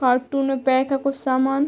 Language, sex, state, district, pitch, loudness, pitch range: Hindi, female, Uttar Pradesh, Hamirpur, 270 Hz, -21 LUFS, 260-275 Hz